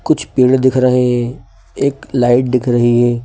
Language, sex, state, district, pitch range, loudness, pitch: Hindi, male, Madhya Pradesh, Bhopal, 120-130 Hz, -14 LUFS, 125 Hz